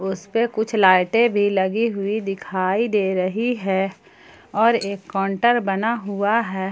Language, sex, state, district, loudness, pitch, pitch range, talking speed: Hindi, female, Jharkhand, Palamu, -20 LUFS, 200 Hz, 190-230 Hz, 150 wpm